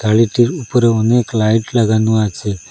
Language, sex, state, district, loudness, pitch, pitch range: Bengali, male, Assam, Hailakandi, -14 LUFS, 110 Hz, 110-120 Hz